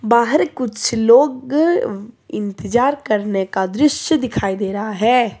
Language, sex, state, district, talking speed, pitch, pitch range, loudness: Hindi, female, Jharkhand, Deoghar, 120 wpm, 235 Hz, 205-270 Hz, -17 LUFS